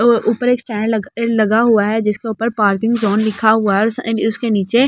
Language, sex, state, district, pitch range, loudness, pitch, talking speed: Hindi, female, Delhi, New Delhi, 215-230 Hz, -16 LUFS, 220 Hz, 220 wpm